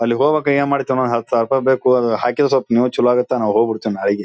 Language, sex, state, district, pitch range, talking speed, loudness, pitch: Kannada, male, Karnataka, Bijapur, 115-135 Hz, 225 wpm, -16 LUFS, 125 Hz